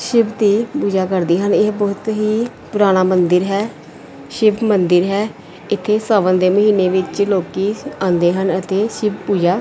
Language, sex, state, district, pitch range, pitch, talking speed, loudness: Punjabi, female, Punjab, Pathankot, 185-215 Hz, 200 Hz, 160 wpm, -16 LUFS